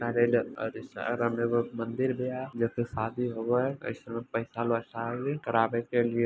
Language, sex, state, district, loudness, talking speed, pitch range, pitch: Maithili, male, Bihar, Madhepura, -30 LUFS, 190 wpm, 115-120 Hz, 120 Hz